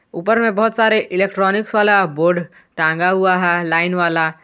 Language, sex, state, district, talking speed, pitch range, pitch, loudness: Hindi, male, Jharkhand, Garhwa, 160 wpm, 170-210 Hz, 185 Hz, -16 LUFS